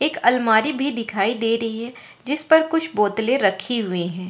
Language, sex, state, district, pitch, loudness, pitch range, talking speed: Hindi, female, Bihar, Katihar, 235 Hz, -20 LUFS, 215-280 Hz, 195 wpm